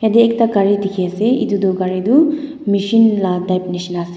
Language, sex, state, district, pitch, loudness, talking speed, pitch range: Nagamese, female, Nagaland, Dimapur, 200 Hz, -15 LUFS, 200 wpm, 185-230 Hz